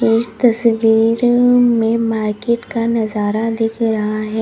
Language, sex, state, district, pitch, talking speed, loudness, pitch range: Hindi, female, Uttar Pradesh, Lalitpur, 225 Hz, 120 wpm, -15 LUFS, 220-235 Hz